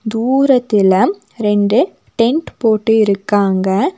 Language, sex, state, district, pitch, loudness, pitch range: Tamil, female, Tamil Nadu, Nilgiris, 220 Hz, -14 LUFS, 205-245 Hz